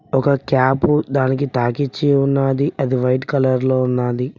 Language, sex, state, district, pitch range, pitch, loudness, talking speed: Telugu, male, Telangana, Mahabubabad, 130-140 Hz, 135 Hz, -17 LUFS, 135 wpm